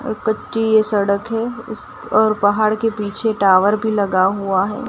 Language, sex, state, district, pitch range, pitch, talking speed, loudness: Hindi, female, Gujarat, Gandhinagar, 200-220 Hz, 215 Hz, 185 wpm, -17 LUFS